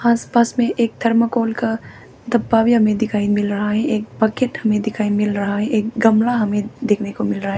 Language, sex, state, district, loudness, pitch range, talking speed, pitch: Hindi, female, Arunachal Pradesh, Papum Pare, -18 LUFS, 210-235 Hz, 215 wpm, 220 Hz